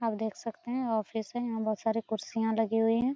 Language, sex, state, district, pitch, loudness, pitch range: Hindi, female, Bihar, Saran, 225 Hz, -32 LUFS, 220-235 Hz